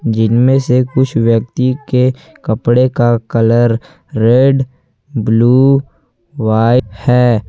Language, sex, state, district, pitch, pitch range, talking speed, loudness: Hindi, male, Jharkhand, Ranchi, 125 Hz, 115-130 Hz, 95 wpm, -12 LUFS